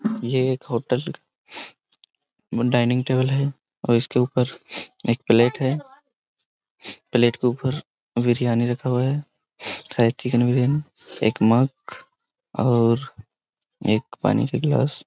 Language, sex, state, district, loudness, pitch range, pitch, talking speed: Hindi, male, Jharkhand, Sahebganj, -22 LUFS, 120-135 Hz, 125 Hz, 115 wpm